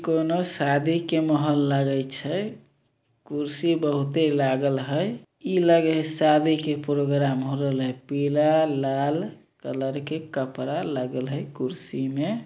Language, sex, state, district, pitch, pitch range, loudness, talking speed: Maithili, male, Bihar, Samastipur, 145 Hz, 135-160 Hz, -24 LUFS, 135 wpm